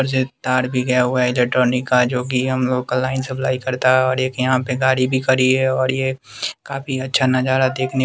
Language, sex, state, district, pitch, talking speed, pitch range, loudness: Hindi, male, Bihar, West Champaran, 130 Hz, 245 wpm, 125-130 Hz, -18 LUFS